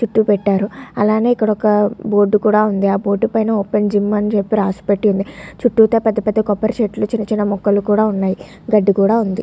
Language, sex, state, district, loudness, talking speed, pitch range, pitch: Telugu, female, Andhra Pradesh, Guntur, -16 LUFS, 160 wpm, 205-220 Hz, 210 Hz